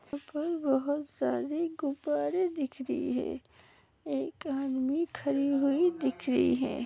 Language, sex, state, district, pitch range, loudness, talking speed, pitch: Hindi, female, Uttar Pradesh, Hamirpur, 270-305 Hz, -31 LUFS, 115 wpm, 280 Hz